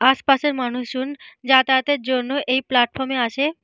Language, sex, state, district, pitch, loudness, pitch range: Bengali, female, Jharkhand, Jamtara, 265 Hz, -19 LUFS, 255-280 Hz